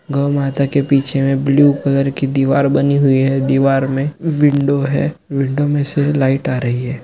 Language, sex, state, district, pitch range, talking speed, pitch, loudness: Hindi, male, Jharkhand, Sahebganj, 135-140 Hz, 185 wpm, 140 Hz, -15 LUFS